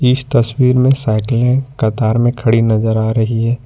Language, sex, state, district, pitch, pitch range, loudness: Hindi, male, Jharkhand, Ranchi, 120 Hz, 110-125 Hz, -14 LUFS